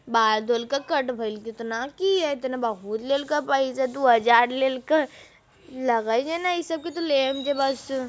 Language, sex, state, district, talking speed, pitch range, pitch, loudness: Magahi, female, Bihar, Jamui, 200 wpm, 235-290 Hz, 265 Hz, -24 LUFS